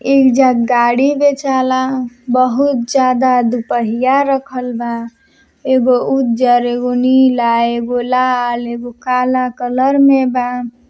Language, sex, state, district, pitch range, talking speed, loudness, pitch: Bhojpuri, male, Uttar Pradesh, Deoria, 245-260 Hz, 105 wpm, -14 LUFS, 250 Hz